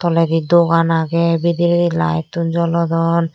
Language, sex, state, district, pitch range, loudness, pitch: Chakma, female, Tripura, Dhalai, 165-170 Hz, -16 LUFS, 170 Hz